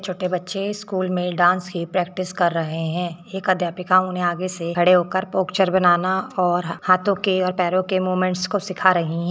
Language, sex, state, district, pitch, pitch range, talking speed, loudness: Hindi, female, Rajasthan, Churu, 185 Hz, 175-185 Hz, 195 wpm, -21 LUFS